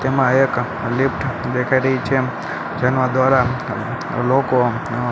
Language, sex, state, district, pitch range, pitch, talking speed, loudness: Gujarati, male, Gujarat, Gandhinagar, 125-130 Hz, 130 Hz, 115 wpm, -18 LUFS